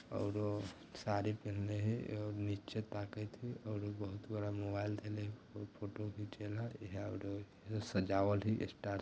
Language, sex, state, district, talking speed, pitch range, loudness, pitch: Bajjika, male, Bihar, Vaishali, 145 wpm, 100-105 Hz, -42 LUFS, 105 Hz